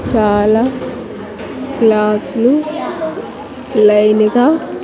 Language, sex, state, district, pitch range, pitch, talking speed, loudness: Telugu, female, Andhra Pradesh, Sri Satya Sai, 215-280 Hz, 240 Hz, 50 wpm, -13 LUFS